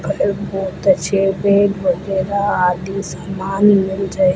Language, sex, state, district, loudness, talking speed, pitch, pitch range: Hindi, female, Rajasthan, Bikaner, -17 LUFS, 125 wpm, 195 Hz, 185-200 Hz